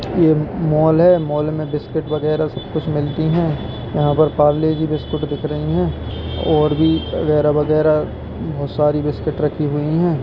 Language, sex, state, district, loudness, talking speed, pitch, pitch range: Hindi, male, Bihar, Jamui, -18 LUFS, 155 wpm, 150 Hz, 150-155 Hz